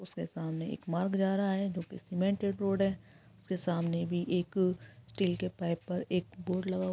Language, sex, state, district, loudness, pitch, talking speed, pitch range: Hindi, female, Jharkhand, Sahebganj, -33 LUFS, 185 Hz, 215 wpm, 175-190 Hz